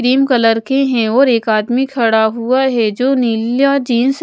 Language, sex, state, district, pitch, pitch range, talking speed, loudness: Hindi, female, Odisha, Malkangiri, 245 Hz, 225-265 Hz, 200 wpm, -13 LUFS